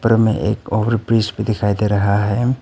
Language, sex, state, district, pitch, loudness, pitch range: Hindi, male, Arunachal Pradesh, Papum Pare, 110 Hz, -17 LUFS, 105-115 Hz